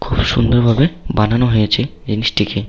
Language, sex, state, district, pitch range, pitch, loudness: Bengali, male, West Bengal, Paschim Medinipur, 105-125 Hz, 115 Hz, -15 LUFS